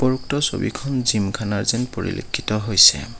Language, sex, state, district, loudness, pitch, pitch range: Assamese, male, Assam, Kamrup Metropolitan, -20 LUFS, 115 Hz, 105-130 Hz